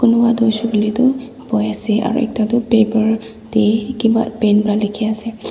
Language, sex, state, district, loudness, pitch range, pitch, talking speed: Nagamese, female, Nagaland, Dimapur, -16 LUFS, 215-235 Hz, 225 Hz, 185 wpm